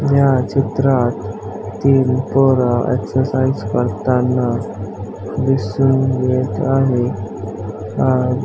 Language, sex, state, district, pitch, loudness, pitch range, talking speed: Marathi, male, Maharashtra, Aurangabad, 130 Hz, -17 LUFS, 120-135 Hz, 80 wpm